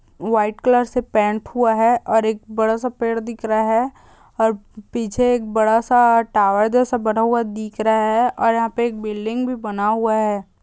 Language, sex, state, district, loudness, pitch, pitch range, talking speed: Hindi, female, Chhattisgarh, Bilaspur, -19 LUFS, 225 Hz, 215-235 Hz, 185 wpm